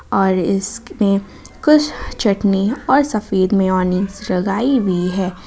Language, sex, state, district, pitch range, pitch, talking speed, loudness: Hindi, female, Jharkhand, Ranchi, 190-225 Hz, 195 Hz, 120 wpm, -17 LUFS